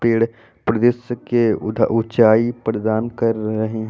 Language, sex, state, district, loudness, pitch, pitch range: Hindi, male, Jharkhand, Deoghar, -19 LUFS, 115 Hz, 110-120 Hz